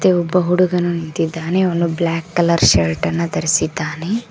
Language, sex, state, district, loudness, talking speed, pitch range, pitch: Kannada, female, Karnataka, Koppal, -17 LUFS, 155 wpm, 160-180 Hz, 170 Hz